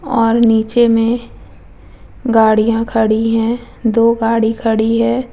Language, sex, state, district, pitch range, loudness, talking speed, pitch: Hindi, female, Bihar, Vaishali, 225-235 Hz, -14 LUFS, 125 wpm, 230 Hz